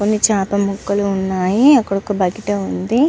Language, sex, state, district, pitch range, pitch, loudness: Telugu, male, Andhra Pradesh, Visakhapatnam, 190-215 Hz, 200 Hz, -16 LUFS